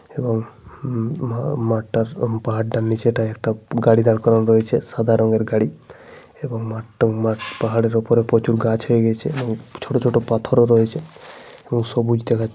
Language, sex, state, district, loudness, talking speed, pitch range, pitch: Bengali, male, Jharkhand, Sahebganj, -19 LUFS, 160 wpm, 110-120 Hz, 115 Hz